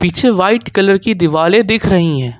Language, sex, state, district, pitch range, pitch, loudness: Hindi, male, Jharkhand, Ranchi, 170-225 Hz, 195 Hz, -12 LUFS